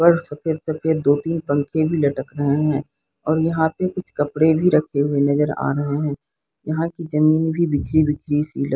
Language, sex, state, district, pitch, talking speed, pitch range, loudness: Hindi, female, Odisha, Sambalpur, 155 Hz, 200 wpm, 145-160 Hz, -20 LUFS